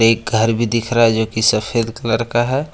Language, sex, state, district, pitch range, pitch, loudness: Hindi, male, Jharkhand, Ranchi, 110-120 Hz, 115 Hz, -16 LUFS